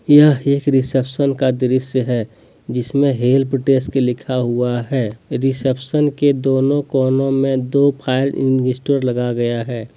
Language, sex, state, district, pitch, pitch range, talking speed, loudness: Hindi, male, Jharkhand, Deoghar, 130 Hz, 125-140 Hz, 130 wpm, -17 LUFS